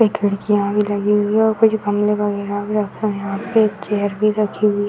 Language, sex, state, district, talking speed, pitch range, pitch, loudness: Hindi, female, Uttar Pradesh, Varanasi, 255 wpm, 205-215 Hz, 210 Hz, -18 LUFS